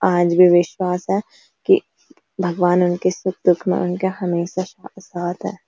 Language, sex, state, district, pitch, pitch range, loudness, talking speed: Hindi, female, Uttarakhand, Uttarkashi, 180 Hz, 175-190 Hz, -19 LUFS, 150 wpm